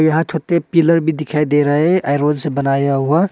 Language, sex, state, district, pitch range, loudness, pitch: Hindi, male, Arunachal Pradesh, Papum Pare, 145-165 Hz, -16 LUFS, 155 Hz